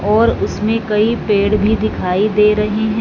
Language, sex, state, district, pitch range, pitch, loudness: Hindi, female, Punjab, Fazilka, 210-220 Hz, 210 Hz, -15 LUFS